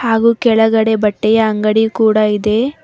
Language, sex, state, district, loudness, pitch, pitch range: Kannada, female, Karnataka, Bangalore, -13 LUFS, 220 Hz, 215-225 Hz